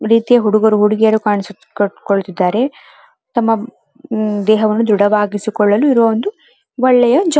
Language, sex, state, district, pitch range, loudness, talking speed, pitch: Kannada, female, Karnataka, Dharwad, 210-245 Hz, -14 LUFS, 80 wpm, 220 Hz